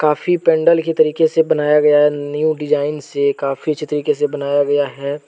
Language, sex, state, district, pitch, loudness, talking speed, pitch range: Hindi, male, Jharkhand, Deoghar, 150 Hz, -16 LUFS, 205 wpm, 145-155 Hz